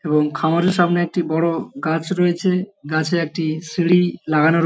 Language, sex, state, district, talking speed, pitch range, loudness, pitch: Bengali, male, West Bengal, Paschim Medinipur, 140 wpm, 160-175 Hz, -19 LUFS, 170 Hz